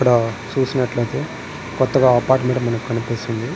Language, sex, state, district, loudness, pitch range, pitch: Telugu, male, Andhra Pradesh, Srikakulam, -19 LUFS, 115-130 Hz, 120 Hz